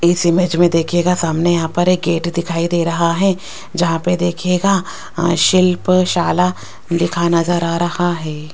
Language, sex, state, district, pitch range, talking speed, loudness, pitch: Hindi, female, Rajasthan, Jaipur, 170-180 Hz, 160 wpm, -16 LUFS, 175 Hz